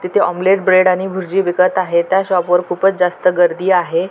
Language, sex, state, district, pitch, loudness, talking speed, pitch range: Marathi, female, Maharashtra, Pune, 185 Hz, -14 LUFS, 205 wpm, 175-190 Hz